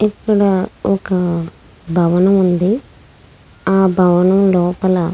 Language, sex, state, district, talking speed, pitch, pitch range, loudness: Telugu, female, Andhra Pradesh, Krishna, 80 wpm, 185 Hz, 175-195 Hz, -15 LUFS